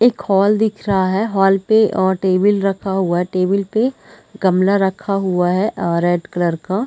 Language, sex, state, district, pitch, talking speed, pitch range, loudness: Hindi, female, Chhattisgarh, Raigarh, 195 Hz, 190 wpm, 185-205 Hz, -17 LUFS